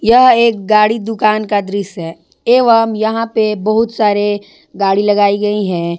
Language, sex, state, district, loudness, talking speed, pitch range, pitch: Hindi, female, Jharkhand, Ranchi, -13 LUFS, 160 wpm, 205-225 Hz, 215 Hz